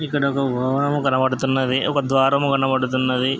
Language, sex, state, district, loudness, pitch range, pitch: Telugu, male, Andhra Pradesh, Krishna, -20 LUFS, 130-140 Hz, 135 Hz